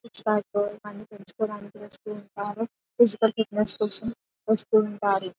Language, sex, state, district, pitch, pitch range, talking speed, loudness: Telugu, female, Telangana, Nalgonda, 210 Hz, 205-220 Hz, 120 wpm, -26 LUFS